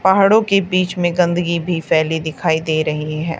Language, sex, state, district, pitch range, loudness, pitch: Hindi, female, Haryana, Charkhi Dadri, 160-185 Hz, -17 LUFS, 170 Hz